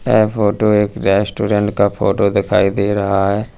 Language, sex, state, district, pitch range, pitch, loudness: Hindi, male, Uttar Pradesh, Lalitpur, 100-105 Hz, 105 Hz, -15 LUFS